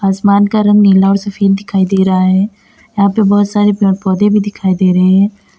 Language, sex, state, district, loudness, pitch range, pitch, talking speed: Hindi, female, Uttar Pradesh, Lalitpur, -11 LUFS, 190-205 Hz, 200 Hz, 215 wpm